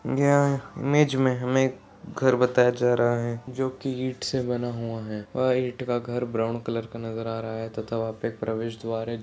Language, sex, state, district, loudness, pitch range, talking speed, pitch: Hindi, male, Chhattisgarh, Sarguja, -26 LUFS, 115-130 Hz, 215 wpm, 120 Hz